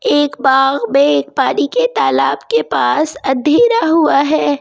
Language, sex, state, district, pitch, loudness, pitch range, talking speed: Hindi, female, Delhi, New Delhi, 290 Hz, -13 LUFS, 265-330 Hz, 155 wpm